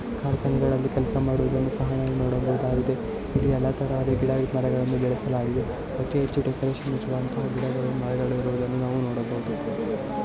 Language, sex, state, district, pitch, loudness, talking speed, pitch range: Kannada, female, Karnataka, Chamarajanagar, 130 Hz, -26 LUFS, 110 wpm, 125-135 Hz